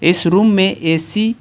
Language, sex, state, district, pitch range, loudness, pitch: Hindi, male, Jharkhand, Ranchi, 165-210 Hz, -14 LUFS, 190 Hz